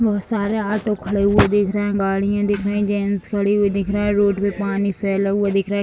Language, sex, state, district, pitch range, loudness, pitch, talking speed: Hindi, female, Bihar, Sitamarhi, 200-205 Hz, -19 LUFS, 205 Hz, 265 wpm